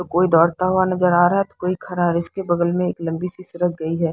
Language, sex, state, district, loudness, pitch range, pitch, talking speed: Hindi, female, Bihar, Patna, -19 LUFS, 170-180 Hz, 175 Hz, 275 wpm